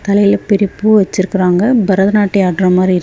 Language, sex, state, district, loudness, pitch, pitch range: Tamil, female, Tamil Nadu, Kanyakumari, -12 LUFS, 195 Hz, 185-205 Hz